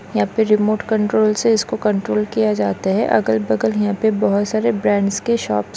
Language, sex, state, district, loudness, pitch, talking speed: Hindi, male, Bihar, Jamui, -18 LUFS, 210 Hz, 195 wpm